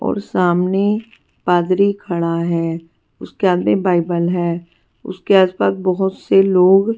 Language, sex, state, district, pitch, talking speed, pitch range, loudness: Hindi, female, Bihar, West Champaran, 180 Hz, 135 wpm, 170-195 Hz, -16 LUFS